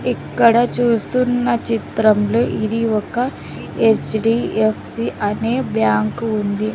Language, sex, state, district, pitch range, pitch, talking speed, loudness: Telugu, female, Andhra Pradesh, Sri Satya Sai, 215-235 Hz, 225 Hz, 90 wpm, -18 LUFS